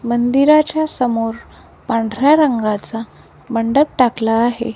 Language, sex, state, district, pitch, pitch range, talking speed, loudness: Marathi, female, Maharashtra, Gondia, 235 Hz, 225-275 Hz, 90 wpm, -16 LUFS